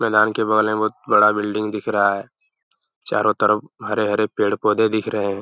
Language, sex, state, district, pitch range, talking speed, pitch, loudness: Hindi, male, Bihar, Araria, 105-110 Hz, 190 wpm, 105 Hz, -19 LUFS